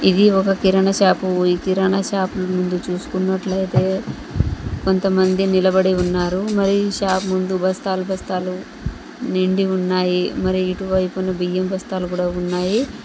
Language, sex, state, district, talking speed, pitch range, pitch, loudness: Telugu, female, Telangana, Mahabubabad, 115 wpm, 185-190 Hz, 185 Hz, -19 LUFS